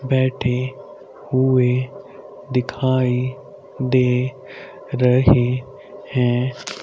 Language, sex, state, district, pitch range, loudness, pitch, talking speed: Hindi, male, Haryana, Rohtak, 125-130 Hz, -20 LUFS, 130 Hz, 55 wpm